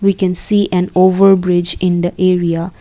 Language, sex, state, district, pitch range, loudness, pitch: English, female, Assam, Kamrup Metropolitan, 175-190 Hz, -13 LUFS, 180 Hz